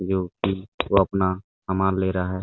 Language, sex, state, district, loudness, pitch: Hindi, male, Chhattisgarh, Bastar, -24 LUFS, 95 Hz